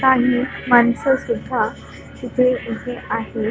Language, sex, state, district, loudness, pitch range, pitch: Marathi, female, Maharashtra, Solapur, -19 LUFS, 230-255 Hz, 245 Hz